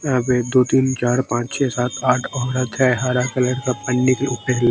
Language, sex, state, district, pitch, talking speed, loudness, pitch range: Hindi, male, Haryana, Rohtak, 125 Hz, 215 wpm, -19 LUFS, 125-130 Hz